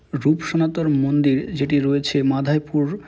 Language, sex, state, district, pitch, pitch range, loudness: Bengali, male, West Bengal, Malda, 145 Hz, 140-155 Hz, -20 LUFS